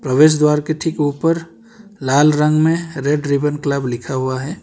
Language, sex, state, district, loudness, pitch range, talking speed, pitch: Hindi, male, Karnataka, Bangalore, -17 LUFS, 140-160 Hz, 180 wpm, 150 Hz